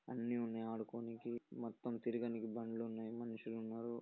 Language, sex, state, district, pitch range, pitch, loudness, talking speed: Telugu, male, Telangana, Nalgonda, 115-120 Hz, 115 Hz, -45 LUFS, 135 wpm